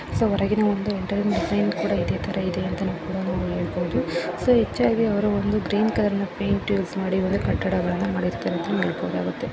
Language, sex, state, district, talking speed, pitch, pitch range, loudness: Kannada, female, Karnataka, Raichur, 150 wpm, 200 Hz, 185-210 Hz, -24 LUFS